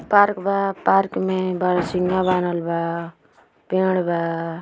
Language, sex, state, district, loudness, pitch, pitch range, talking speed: Bhojpuri, female, Uttar Pradesh, Ghazipur, -21 LUFS, 180 Hz, 170-190 Hz, 115 wpm